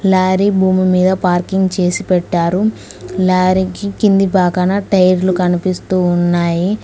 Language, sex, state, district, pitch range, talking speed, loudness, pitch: Telugu, female, Telangana, Mahabubabad, 180-190 Hz, 105 wpm, -14 LUFS, 185 Hz